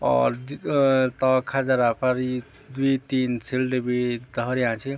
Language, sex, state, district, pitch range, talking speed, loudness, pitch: Garhwali, male, Uttarakhand, Tehri Garhwal, 125-135 Hz, 130 wpm, -24 LUFS, 130 Hz